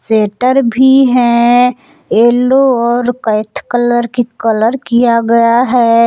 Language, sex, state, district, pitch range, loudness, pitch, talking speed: Hindi, female, Jharkhand, Palamu, 230-255 Hz, -11 LUFS, 240 Hz, 120 wpm